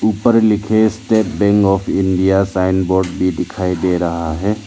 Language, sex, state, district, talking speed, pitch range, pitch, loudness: Hindi, male, Arunachal Pradesh, Lower Dibang Valley, 165 wpm, 95-105 Hz, 95 Hz, -15 LUFS